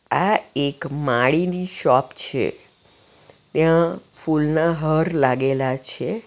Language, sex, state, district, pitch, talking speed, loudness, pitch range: Gujarati, female, Gujarat, Valsad, 155 Hz, 95 wpm, -19 LUFS, 135-170 Hz